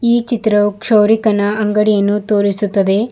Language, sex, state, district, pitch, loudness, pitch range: Kannada, female, Karnataka, Bidar, 210 Hz, -14 LUFS, 205-220 Hz